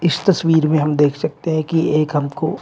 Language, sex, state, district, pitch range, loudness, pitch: Hindi, male, Uttar Pradesh, Shamli, 150-165 Hz, -17 LUFS, 155 Hz